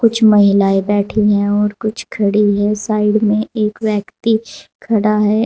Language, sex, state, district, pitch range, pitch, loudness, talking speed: Hindi, female, Uttar Pradesh, Saharanpur, 205-220 Hz, 210 Hz, -15 LUFS, 165 wpm